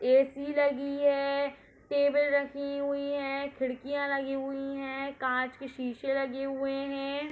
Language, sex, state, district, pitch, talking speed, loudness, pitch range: Hindi, female, Uttar Pradesh, Hamirpur, 275 Hz, 140 wpm, -31 LUFS, 270-280 Hz